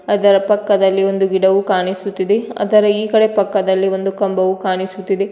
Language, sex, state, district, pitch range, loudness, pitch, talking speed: Kannada, female, Karnataka, Koppal, 190-205 Hz, -15 LUFS, 195 Hz, 135 wpm